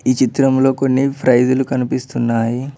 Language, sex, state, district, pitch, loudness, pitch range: Telugu, male, Telangana, Mahabubabad, 130 Hz, -16 LUFS, 125-135 Hz